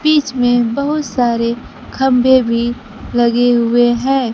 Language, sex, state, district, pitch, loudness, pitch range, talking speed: Hindi, female, Bihar, Kaimur, 245 Hz, -14 LUFS, 235-265 Hz, 125 wpm